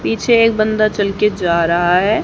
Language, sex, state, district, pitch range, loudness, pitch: Hindi, female, Haryana, Charkhi Dadri, 180-215 Hz, -14 LUFS, 210 Hz